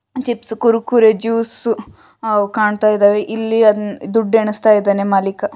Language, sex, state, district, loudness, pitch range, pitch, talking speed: Kannada, female, Karnataka, Shimoga, -15 LUFS, 210-225 Hz, 220 Hz, 95 wpm